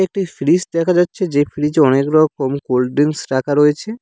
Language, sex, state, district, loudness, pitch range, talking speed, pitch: Bengali, male, West Bengal, Cooch Behar, -16 LUFS, 140-175 Hz, 180 wpm, 150 Hz